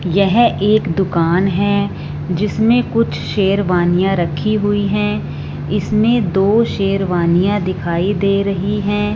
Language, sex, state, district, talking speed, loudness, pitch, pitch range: Hindi, female, Punjab, Fazilka, 110 wpm, -16 LUFS, 195 Hz, 175-205 Hz